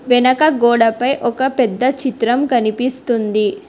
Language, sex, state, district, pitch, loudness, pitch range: Telugu, female, Telangana, Hyderabad, 245 Hz, -15 LUFS, 230-260 Hz